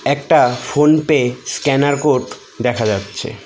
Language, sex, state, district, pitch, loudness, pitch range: Bengali, male, West Bengal, Cooch Behar, 130 Hz, -16 LUFS, 120-145 Hz